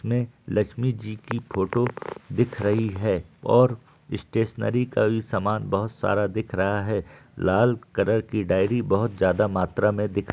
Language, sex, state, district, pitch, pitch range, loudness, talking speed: Hindi, male, Bihar, Gaya, 110 Hz, 100-120 Hz, -24 LUFS, 170 wpm